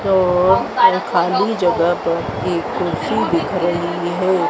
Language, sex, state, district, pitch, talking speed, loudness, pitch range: Hindi, female, Madhya Pradesh, Dhar, 180 Hz, 135 wpm, -17 LUFS, 175-185 Hz